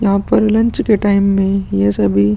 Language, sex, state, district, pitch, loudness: Hindi, male, Chhattisgarh, Sukma, 200 Hz, -14 LUFS